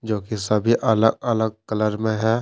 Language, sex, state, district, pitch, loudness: Hindi, male, Jharkhand, Deoghar, 110 Hz, -21 LUFS